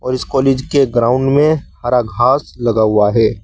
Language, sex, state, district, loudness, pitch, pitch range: Hindi, male, Uttar Pradesh, Saharanpur, -14 LUFS, 125 Hz, 110-135 Hz